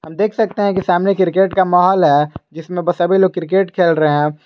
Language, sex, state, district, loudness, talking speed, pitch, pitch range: Hindi, male, Jharkhand, Garhwa, -15 LUFS, 215 wpm, 180 Hz, 165-190 Hz